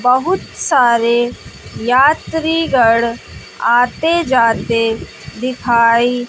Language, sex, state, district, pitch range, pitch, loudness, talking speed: Hindi, female, Bihar, West Champaran, 235-270 Hz, 245 Hz, -14 LUFS, 55 wpm